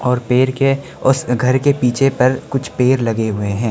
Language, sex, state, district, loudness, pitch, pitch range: Hindi, male, Arunachal Pradesh, Lower Dibang Valley, -16 LUFS, 125 Hz, 125-135 Hz